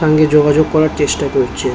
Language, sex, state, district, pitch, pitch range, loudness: Bengali, male, West Bengal, Kolkata, 155 Hz, 150-155 Hz, -13 LUFS